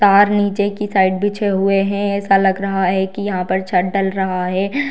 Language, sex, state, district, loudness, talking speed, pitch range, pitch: Hindi, female, Bihar, Darbhanga, -17 LUFS, 220 wpm, 190-205 Hz, 195 Hz